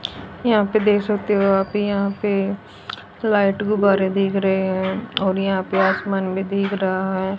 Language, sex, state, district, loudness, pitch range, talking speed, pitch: Hindi, female, Haryana, Jhajjar, -20 LUFS, 190-205 Hz, 170 wpm, 195 Hz